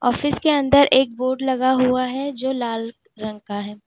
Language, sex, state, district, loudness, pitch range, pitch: Hindi, female, Uttar Pradesh, Lalitpur, -19 LUFS, 230-265 Hz, 255 Hz